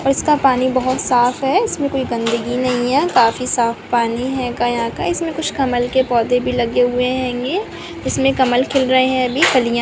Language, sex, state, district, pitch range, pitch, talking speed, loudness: Hindi, female, Uttar Pradesh, Muzaffarnagar, 245-270 Hz, 255 Hz, 200 wpm, -17 LUFS